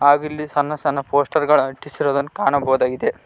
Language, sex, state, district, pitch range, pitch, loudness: Kannada, male, Karnataka, Koppal, 140-150 Hz, 145 Hz, -19 LUFS